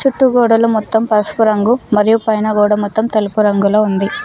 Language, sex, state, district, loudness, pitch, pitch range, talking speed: Telugu, female, Telangana, Mahabubabad, -13 LUFS, 215 Hz, 210-225 Hz, 170 wpm